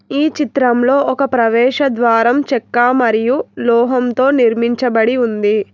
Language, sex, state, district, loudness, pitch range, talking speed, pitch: Telugu, female, Telangana, Hyderabad, -14 LUFS, 235-265 Hz, 95 wpm, 245 Hz